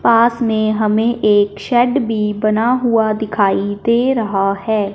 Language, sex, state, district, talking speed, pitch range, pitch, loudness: Hindi, male, Punjab, Fazilka, 145 wpm, 205-235 Hz, 220 Hz, -15 LUFS